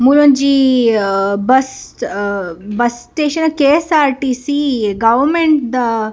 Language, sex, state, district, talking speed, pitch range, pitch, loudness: Tulu, female, Karnataka, Dakshina Kannada, 70 wpm, 225-285 Hz, 260 Hz, -14 LUFS